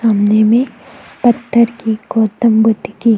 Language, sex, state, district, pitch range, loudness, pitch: Hindi, female, Chhattisgarh, Kabirdham, 220-240 Hz, -13 LUFS, 230 Hz